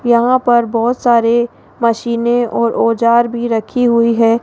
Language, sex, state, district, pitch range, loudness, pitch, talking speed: Hindi, female, Rajasthan, Jaipur, 230-240 Hz, -14 LUFS, 235 Hz, 150 wpm